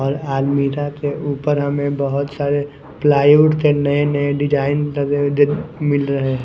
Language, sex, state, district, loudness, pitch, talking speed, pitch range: Hindi, male, Punjab, Kapurthala, -17 LUFS, 145 Hz, 150 wpm, 140-145 Hz